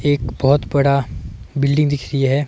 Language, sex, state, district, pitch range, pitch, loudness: Hindi, male, Himachal Pradesh, Shimla, 135-145 Hz, 140 Hz, -18 LUFS